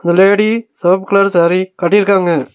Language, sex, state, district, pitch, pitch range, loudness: Tamil, male, Tamil Nadu, Nilgiris, 190 Hz, 175-200 Hz, -12 LUFS